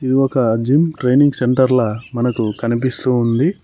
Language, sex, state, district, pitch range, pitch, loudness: Telugu, male, Telangana, Mahabubabad, 120-135 Hz, 125 Hz, -16 LUFS